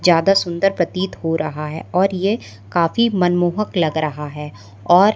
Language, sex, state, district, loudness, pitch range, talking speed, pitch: Hindi, female, Madhya Pradesh, Umaria, -19 LUFS, 155-195 Hz, 165 wpm, 175 Hz